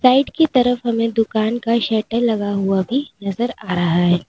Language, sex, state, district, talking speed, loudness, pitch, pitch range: Hindi, female, Uttar Pradesh, Lalitpur, 195 wpm, -18 LUFS, 230 Hz, 200-240 Hz